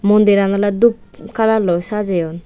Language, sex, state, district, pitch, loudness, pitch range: Chakma, female, Tripura, West Tripura, 205 Hz, -15 LUFS, 190-220 Hz